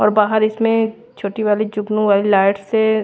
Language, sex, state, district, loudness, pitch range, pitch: Hindi, female, Haryana, Rohtak, -17 LUFS, 210-220 Hz, 215 Hz